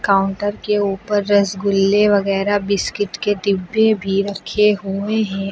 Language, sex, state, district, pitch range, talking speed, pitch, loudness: Hindi, female, Uttar Pradesh, Lucknow, 195-205 Hz, 130 wpm, 200 Hz, -18 LUFS